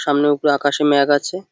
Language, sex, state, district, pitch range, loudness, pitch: Bengali, male, West Bengal, Jalpaiguri, 145-150 Hz, -17 LUFS, 145 Hz